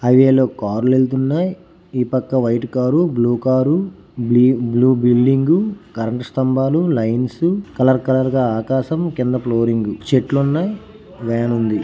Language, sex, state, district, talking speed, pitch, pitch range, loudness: Telugu, male, Andhra Pradesh, Srikakulam, 115 wpm, 130 Hz, 120-140 Hz, -17 LUFS